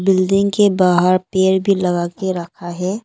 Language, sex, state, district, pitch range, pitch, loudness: Hindi, female, Arunachal Pradesh, Longding, 180-195 Hz, 185 Hz, -16 LUFS